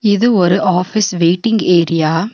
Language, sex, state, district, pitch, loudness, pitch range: Tamil, female, Tamil Nadu, Nilgiris, 185 Hz, -13 LUFS, 170-215 Hz